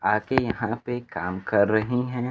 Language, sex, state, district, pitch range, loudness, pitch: Hindi, male, Bihar, Kaimur, 110-125 Hz, -25 LUFS, 120 Hz